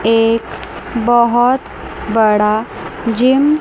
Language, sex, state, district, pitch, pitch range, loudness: Hindi, male, Chandigarh, Chandigarh, 235 Hz, 225-255 Hz, -14 LUFS